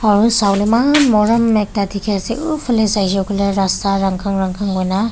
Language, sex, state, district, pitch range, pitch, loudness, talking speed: Nagamese, female, Nagaland, Kohima, 195-225 Hz, 205 Hz, -15 LUFS, 175 wpm